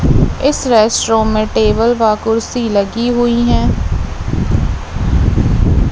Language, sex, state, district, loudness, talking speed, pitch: Hindi, female, Madhya Pradesh, Katni, -14 LUFS, 80 wpm, 215 Hz